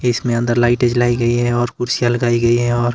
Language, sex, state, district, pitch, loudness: Hindi, male, Himachal Pradesh, Shimla, 120 Hz, -16 LUFS